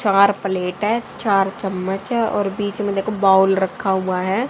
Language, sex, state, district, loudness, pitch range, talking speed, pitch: Hindi, female, Haryana, Charkhi Dadri, -19 LUFS, 190-205 Hz, 185 wpm, 195 Hz